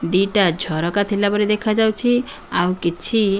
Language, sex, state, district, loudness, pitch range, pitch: Odia, female, Odisha, Khordha, -18 LUFS, 180-215 Hz, 205 Hz